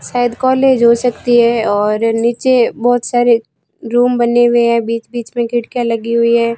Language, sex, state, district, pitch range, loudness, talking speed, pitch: Hindi, female, Rajasthan, Barmer, 230-245 Hz, -13 LUFS, 180 wpm, 235 Hz